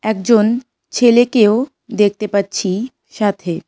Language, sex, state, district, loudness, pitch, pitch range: Bengali, female, West Bengal, Cooch Behar, -15 LUFS, 215 Hz, 200-240 Hz